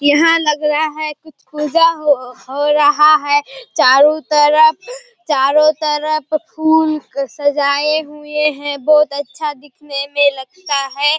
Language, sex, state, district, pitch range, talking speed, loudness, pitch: Hindi, female, Bihar, Kishanganj, 285-310 Hz, 130 wpm, -14 LUFS, 300 Hz